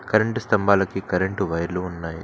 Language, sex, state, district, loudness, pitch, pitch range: Telugu, male, Telangana, Mahabubabad, -22 LUFS, 95 Hz, 90-100 Hz